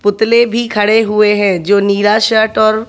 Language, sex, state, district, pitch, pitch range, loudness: Hindi, male, Haryana, Jhajjar, 215 Hz, 205-220 Hz, -11 LUFS